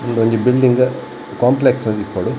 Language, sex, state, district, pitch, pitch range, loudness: Tulu, male, Karnataka, Dakshina Kannada, 125 Hz, 115-125 Hz, -15 LUFS